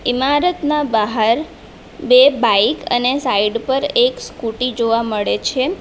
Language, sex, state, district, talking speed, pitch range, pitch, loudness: Gujarati, female, Gujarat, Valsad, 125 wpm, 225-290 Hz, 250 Hz, -16 LUFS